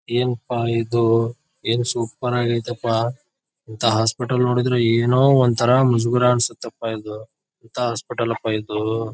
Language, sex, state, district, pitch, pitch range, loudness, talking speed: Kannada, male, Karnataka, Bijapur, 120 Hz, 115-125 Hz, -20 LUFS, 120 wpm